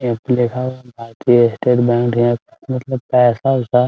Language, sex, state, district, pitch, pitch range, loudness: Hindi, male, Bihar, Muzaffarpur, 120 Hz, 120-125 Hz, -16 LUFS